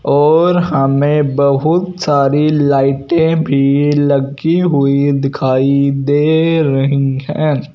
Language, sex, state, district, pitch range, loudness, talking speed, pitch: Hindi, male, Punjab, Fazilka, 140-155 Hz, -13 LUFS, 95 wpm, 145 Hz